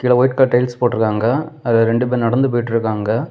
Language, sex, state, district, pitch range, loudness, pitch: Tamil, male, Tamil Nadu, Kanyakumari, 115-130 Hz, -16 LUFS, 120 Hz